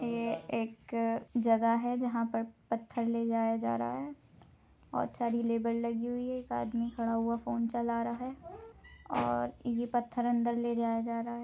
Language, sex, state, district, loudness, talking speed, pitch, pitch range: Hindi, female, Maharashtra, Aurangabad, -33 LUFS, 175 wpm, 235 Hz, 230-240 Hz